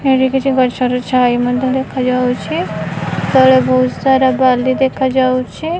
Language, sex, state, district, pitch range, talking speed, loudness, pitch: Odia, male, Odisha, Khordha, 250-265 Hz, 135 wpm, -14 LUFS, 260 Hz